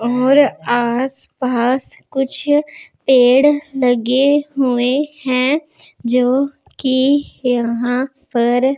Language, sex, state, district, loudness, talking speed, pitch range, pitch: Hindi, female, Punjab, Pathankot, -16 LUFS, 75 wpm, 245-280 Hz, 260 Hz